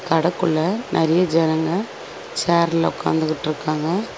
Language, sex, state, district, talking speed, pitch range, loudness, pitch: Tamil, female, Tamil Nadu, Chennai, 70 wpm, 160-180 Hz, -20 LUFS, 165 Hz